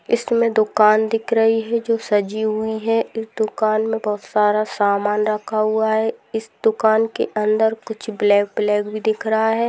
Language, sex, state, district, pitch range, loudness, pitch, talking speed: Hindi, female, Bihar, Gopalganj, 215-225 Hz, -19 LUFS, 220 Hz, 180 wpm